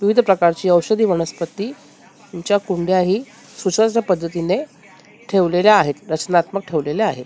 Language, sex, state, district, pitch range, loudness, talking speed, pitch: Marathi, female, Maharashtra, Mumbai Suburban, 170-215 Hz, -18 LUFS, 115 wpm, 190 Hz